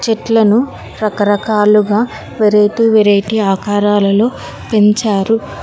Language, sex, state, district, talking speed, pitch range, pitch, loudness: Telugu, female, Telangana, Hyderabad, 65 wpm, 205-220 Hz, 210 Hz, -12 LUFS